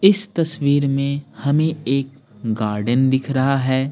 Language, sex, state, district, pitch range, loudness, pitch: Hindi, male, Bihar, Patna, 130-145 Hz, -20 LUFS, 140 Hz